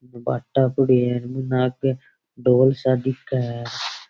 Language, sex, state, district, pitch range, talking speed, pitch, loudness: Rajasthani, male, Rajasthan, Churu, 125-130 Hz, 130 wpm, 130 Hz, -21 LUFS